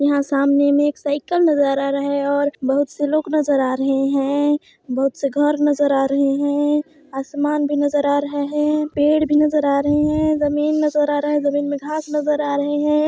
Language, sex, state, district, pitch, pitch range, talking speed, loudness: Hindi, female, Chhattisgarh, Sarguja, 290 Hz, 280-295 Hz, 220 wpm, -18 LUFS